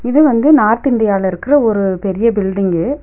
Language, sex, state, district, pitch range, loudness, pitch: Tamil, female, Tamil Nadu, Nilgiris, 195-275 Hz, -13 LUFS, 220 Hz